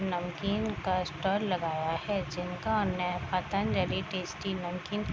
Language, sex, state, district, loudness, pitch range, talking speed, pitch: Hindi, female, Bihar, East Champaran, -32 LUFS, 180-200 Hz, 140 wpm, 185 Hz